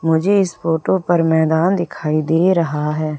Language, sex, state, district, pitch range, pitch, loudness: Hindi, female, Madhya Pradesh, Umaria, 155-175 Hz, 165 Hz, -17 LUFS